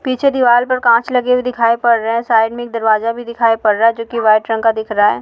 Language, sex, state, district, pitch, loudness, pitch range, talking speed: Bhojpuri, female, Bihar, Saran, 230 Hz, -14 LUFS, 225-240 Hz, 310 wpm